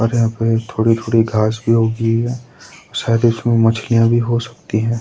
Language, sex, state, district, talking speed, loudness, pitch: Hindi, male, Uttarakhand, Tehri Garhwal, 180 wpm, -16 LUFS, 115 Hz